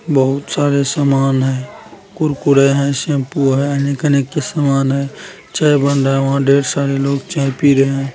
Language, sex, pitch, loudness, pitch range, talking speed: Maithili, male, 140 Hz, -15 LUFS, 135-145 Hz, 170 wpm